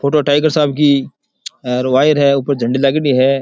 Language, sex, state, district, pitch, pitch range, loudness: Rajasthani, male, Rajasthan, Churu, 140 Hz, 135-145 Hz, -14 LUFS